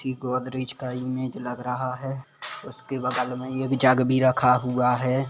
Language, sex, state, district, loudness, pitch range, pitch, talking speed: Hindi, male, Chhattisgarh, Kabirdham, -25 LUFS, 125-130 Hz, 130 Hz, 180 wpm